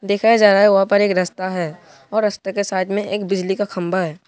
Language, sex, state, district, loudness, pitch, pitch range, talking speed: Hindi, male, Tripura, West Tripura, -18 LUFS, 195 Hz, 185-205 Hz, 265 wpm